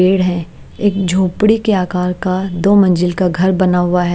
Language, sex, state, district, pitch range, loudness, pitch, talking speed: Hindi, female, Himachal Pradesh, Shimla, 180-190 Hz, -14 LUFS, 185 Hz, 200 wpm